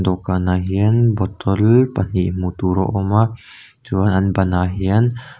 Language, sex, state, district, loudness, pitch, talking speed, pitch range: Mizo, male, Mizoram, Aizawl, -17 LUFS, 95 Hz, 145 wpm, 95-110 Hz